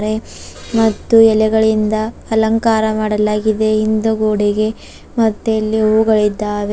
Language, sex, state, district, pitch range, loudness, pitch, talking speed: Kannada, female, Karnataka, Bidar, 215-220 Hz, -15 LUFS, 215 Hz, 80 wpm